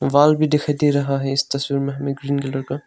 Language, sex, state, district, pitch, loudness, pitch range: Hindi, male, Arunachal Pradesh, Longding, 140 Hz, -20 LUFS, 140-145 Hz